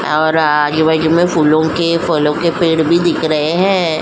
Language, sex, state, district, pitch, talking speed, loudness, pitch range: Hindi, female, Uttar Pradesh, Jyotiba Phule Nagar, 160 Hz, 165 wpm, -13 LUFS, 155-170 Hz